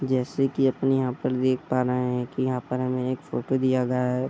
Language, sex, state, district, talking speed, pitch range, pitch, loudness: Hindi, male, Uttar Pradesh, Budaun, 265 wpm, 125-130 Hz, 130 Hz, -25 LUFS